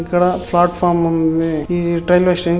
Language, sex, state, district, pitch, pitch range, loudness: Telugu, male, Andhra Pradesh, Chittoor, 175 Hz, 165-180 Hz, -16 LUFS